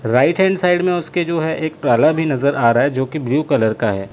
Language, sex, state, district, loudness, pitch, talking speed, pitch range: Hindi, male, Chandigarh, Chandigarh, -17 LUFS, 150 Hz, 290 wpm, 120-165 Hz